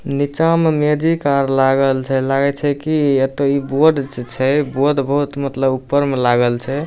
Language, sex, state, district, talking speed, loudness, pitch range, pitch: Maithili, male, Bihar, Samastipur, 185 wpm, -16 LUFS, 135-145 Hz, 140 Hz